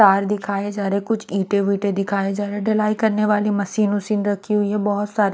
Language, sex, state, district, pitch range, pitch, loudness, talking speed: Hindi, female, Haryana, Charkhi Dadri, 200-210 Hz, 205 Hz, -20 LUFS, 260 wpm